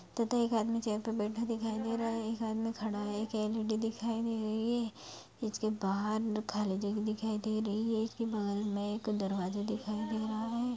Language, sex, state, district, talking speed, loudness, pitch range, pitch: Hindi, female, Bihar, Darbhanga, 205 wpm, -35 LUFS, 210-225 Hz, 220 Hz